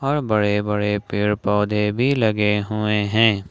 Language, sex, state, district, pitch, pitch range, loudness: Hindi, male, Jharkhand, Ranchi, 105 Hz, 105-110 Hz, -20 LUFS